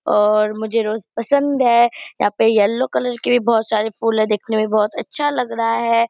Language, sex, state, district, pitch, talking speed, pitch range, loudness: Hindi, female, Bihar, Purnia, 225 Hz, 215 wpm, 215-235 Hz, -17 LUFS